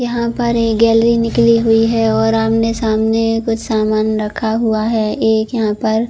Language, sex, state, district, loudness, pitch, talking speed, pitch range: Hindi, female, Chhattisgarh, Bilaspur, -14 LUFS, 225 Hz, 165 wpm, 220-230 Hz